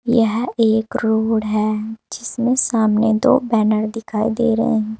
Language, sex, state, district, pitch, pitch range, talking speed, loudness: Hindi, female, Uttar Pradesh, Saharanpur, 225 Hz, 220-235 Hz, 145 wpm, -18 LUFS